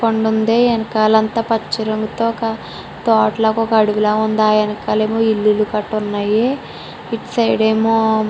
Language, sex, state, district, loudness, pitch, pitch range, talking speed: Telugu, female, Andhra Pradesh, Srikakulam, -16 LUFS, 220 Hz, 215-225 Hz, 150 wpm